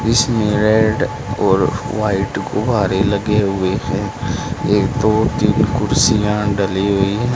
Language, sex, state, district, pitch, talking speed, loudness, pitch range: Hindi, male, Haryana, Charkhi Dadri, 105 Hz, 115 wpm, -16 LUFS, 95-110 Hz